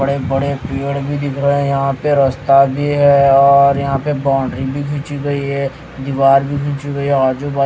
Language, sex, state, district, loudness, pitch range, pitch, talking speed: Hindi, male, Haryana, Rohtak, -15 LUFS, 135-140 Hz, 140 Hz, 180 wpm